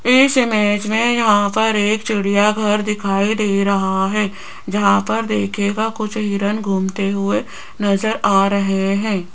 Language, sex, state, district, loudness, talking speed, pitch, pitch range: Hindi, female, Rajasthan, Jaipur, -17 LUFS, 140 wpm, 205 Hz, 200-215 Hz